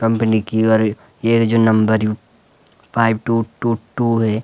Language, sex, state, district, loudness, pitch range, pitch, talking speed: Garhwali, male, Uttarakhand, Uttarkashi, -17 LUFS, 110-115 Hz, 115 Hz, 175 wpm